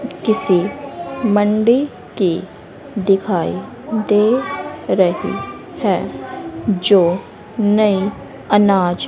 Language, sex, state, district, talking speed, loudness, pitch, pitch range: Hindi, female, Haryana, Rohtak, 65 wpm, -17 LUFS, 205 Hz, 195-220 Hz